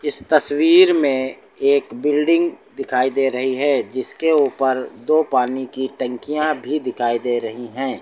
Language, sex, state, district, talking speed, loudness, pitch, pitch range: Hindi, male, Uttar Pradesh, Lucknow, 150 wpm, -18 LUFS, 135 Hz, 125-150 Hz